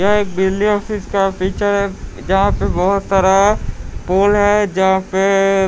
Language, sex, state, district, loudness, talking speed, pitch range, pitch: Hindi, male, Bihar, Patna, -15 LUFS, 135 wpm, 190-205 Hz, 195 Hz